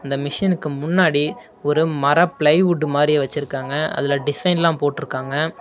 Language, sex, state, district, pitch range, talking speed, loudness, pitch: Tamil, male, Tamil Nadu, Namakkal, 145-160 Hz, 130 wpm, -19 LUFS, 150 Hz